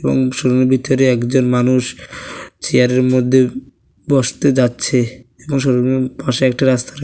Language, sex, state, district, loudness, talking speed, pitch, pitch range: Bengali, male, Tripura, West Tripura, -15 LUFS, 120 wpm, 130 Hz, 125-130 Hz